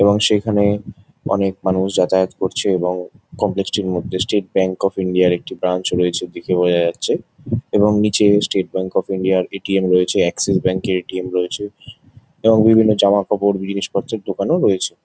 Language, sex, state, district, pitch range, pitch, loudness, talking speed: Bengali, male, West Bengal, Jalpaiguri, 90-100 Hz, 95 Hz, -18 LUFS, 165 wpm